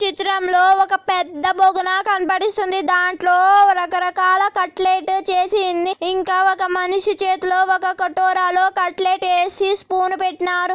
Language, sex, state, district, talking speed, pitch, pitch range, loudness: Telugu, male, Andhra Pradesh, Anantapur, 110 wpm, 375 Hz, 365-385 Hz, -17 LUFS